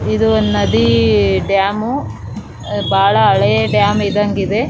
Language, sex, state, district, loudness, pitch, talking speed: Kannada, female, Karnataka, Raichur, -14 LUFS, 190 Hz, 130 wpm